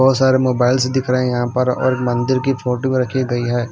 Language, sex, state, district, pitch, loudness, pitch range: Hindi, male, Himachal Pradesh, Shimla, 125 Hz, -17 LUFS, 125-130 Hz